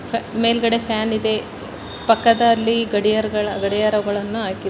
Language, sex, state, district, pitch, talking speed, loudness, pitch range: Kannada, male, Karnataka, Mysore, 220 Hz, 90 wpm, -18 LUFS, 210-230 Hz